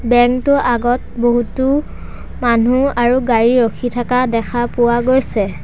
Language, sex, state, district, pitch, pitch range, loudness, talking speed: Assamese, male, Assam, Sonitpur, 245 Hz, 235-255 Hz, -15 LUFS, 130 wpm